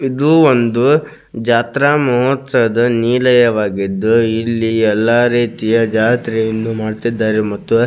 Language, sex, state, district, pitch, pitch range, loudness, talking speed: Kannada, male, Karnataka, Belgaum, 115 Hz, 110-125 Hz, -14 LUFS, 90 wpm